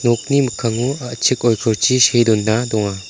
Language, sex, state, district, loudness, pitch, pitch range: Garo, male, Meghalaya, South Garo Hills, -16 LUFS, 120 Hz, 110-125 Hz